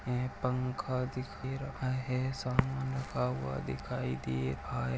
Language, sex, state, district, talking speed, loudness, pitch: Hindi, male, Chhattisgarh, Balrampur, 130 wpm, -35 LUFS, 125 Hz